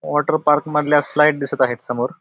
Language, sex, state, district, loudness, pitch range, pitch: Marathi, male, Maharashtra, Pune, -18 LUFS, 130-150 Hz, 150 Hz